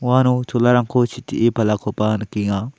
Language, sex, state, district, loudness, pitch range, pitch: Garo, male, Meghalaya, South Garo Hills, -19 LUFS, 105-125 Hz, 120 Hz